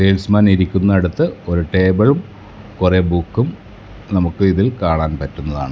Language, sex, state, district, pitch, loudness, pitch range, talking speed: Malayalam, male, Kerala, Kasaragod, 95 Hz, -16 LUFS, 85-105 Hz, 105 wpm